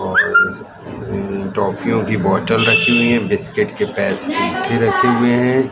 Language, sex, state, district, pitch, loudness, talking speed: Hindi, male, Madhya Pradesh, Katni, 130 Hz, -16 LUFS, 135 wpm